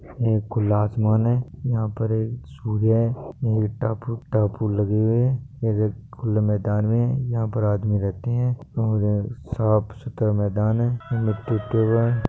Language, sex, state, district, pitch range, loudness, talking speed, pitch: Marwari, male, Rajasthan, Nagaur, 105-120 Hz, -23 LUFS, 145 wpm, 110 Hz